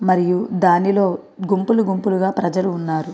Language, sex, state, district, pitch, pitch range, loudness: Telugu, female, Andhra Pradesh, Srikakulam, 185 Hz, 180-195 Hz, -18 LUFS